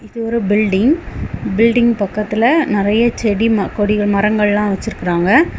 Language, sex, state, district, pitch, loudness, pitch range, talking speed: Tamil, female, Tamil Nadu, Kanyakumari, 215 Hz, -15 LUFS, 205-230 Hz, 140 wpm